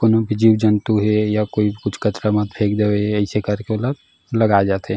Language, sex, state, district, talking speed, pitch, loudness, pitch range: Chhattisgarhi, male, Chhattisgarh, Jashpur, 205 wpm, 105 Hz, -18 LUFS, 105-110 Hz